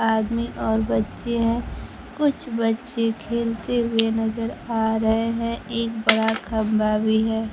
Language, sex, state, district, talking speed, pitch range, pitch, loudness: Hindi, male, Bihar, Kaimur, 135 wpm, 220-230 Hz, 225 Hz, -23 LUFS